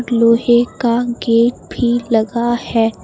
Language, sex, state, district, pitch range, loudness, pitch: Hindi, female, Uttar Pradesh, Lucknow, 230-240 Hz, -15 LUFS, 235 Hz